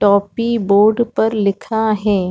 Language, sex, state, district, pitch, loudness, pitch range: Hindi, female, Chhattisgarh, Rajnandgaon, 215 Hz, -16 LUFS, 200-225 Hz